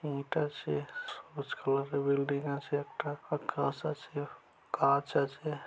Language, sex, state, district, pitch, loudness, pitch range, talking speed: Bengali, male, West Bengal, Dakshin Dinajpur, 140 Hz, -34 LUFS, 140-145 Hz, 105 wpm